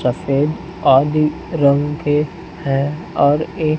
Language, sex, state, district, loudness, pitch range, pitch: Hindi, male, Chhattisgarh, Raipur, -17 LUFS, 140-160 Hz, 150 Hz